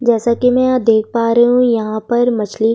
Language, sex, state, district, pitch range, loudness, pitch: Hindi, female, Uttar Pradesh, Jyotiba Phule Nagar, 225-245 Hz, -14 LUFS, 235 Hz